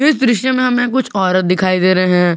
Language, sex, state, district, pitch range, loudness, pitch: Hindi, male, Jharkhand, Garhwa, 185-255 Hz, -14 LUFS, 190 Hz